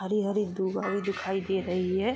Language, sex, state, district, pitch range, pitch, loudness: Hindi, female, Uttar Pradesh, Jyotiba Phule Nagar, 190-200 Hz, 195 Hz, -29 LUFS